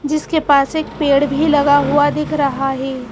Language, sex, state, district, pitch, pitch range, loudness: Hindi, female, Madhya Pradesh, Bhopal, 285 Hz, 275-300 Hz, -15 LUFS